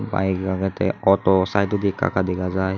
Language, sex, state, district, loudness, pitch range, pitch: Chakma, male, Tripura, Unakoti, -21 LUFS, 95-100 Hz, 95 Hz